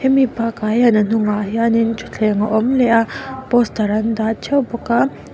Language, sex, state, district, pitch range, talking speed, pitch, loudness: Mizo, female, Mizoram, Aizawl, 220-245 Hz, 190 wpm, 230 Hz, -17 LUFS